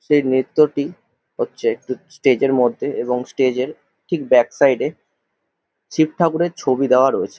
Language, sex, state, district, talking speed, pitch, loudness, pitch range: Bengali, male, West Bengal, Jalpaiguri, 165 wpm, 135 Hz, -18 LUFS, 130-155 Hz